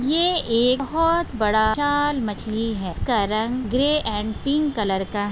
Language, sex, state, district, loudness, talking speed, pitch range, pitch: Hindi, female, Maharashtra, Solapur, -21 LUFS, 160 wpm, 215-290 Hz, 240 Hz